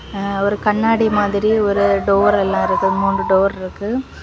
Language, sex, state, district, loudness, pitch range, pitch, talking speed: Tamil, female, Tamil Nadu, Kanyakumari, -17 LUFS, 195-210 Hz, 200 Hz, 155 wpm